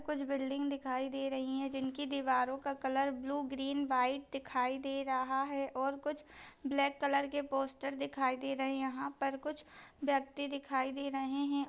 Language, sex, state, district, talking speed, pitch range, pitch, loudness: Hindi, female, Bihar, Saharsa, 180 wpm, 265-280 Hz, 275 Hz, -36 LUFS